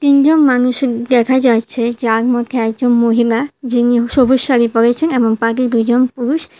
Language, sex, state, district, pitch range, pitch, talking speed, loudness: Bengali, female, Tripura, West Tripura, 235-260 Hz, 245 Hz, 145 wpm, -13 LUFS